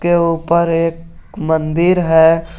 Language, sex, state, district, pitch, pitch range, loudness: Hindi, male, Jharkhand, Garhwa, 165 Hz, 160-170 Hz, -14 LUFS